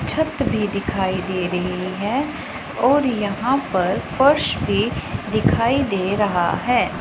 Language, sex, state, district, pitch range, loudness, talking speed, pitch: Hindi, female, Punjab, Pathankot, 185-265 Hz, -20 LUFS, 130 wpm, 210 Hz